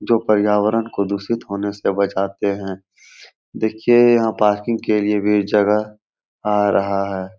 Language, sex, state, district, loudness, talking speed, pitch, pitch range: Hindi, male, Bihar, Jahanabad, -18 LUFS, 145 wpm, 105 Hz, 100-110 Hz